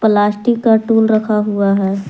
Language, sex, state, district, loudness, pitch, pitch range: Hindi, female, Jharkhand, Palamu, -14 LUFS, 210 Hz, 205-225 Hz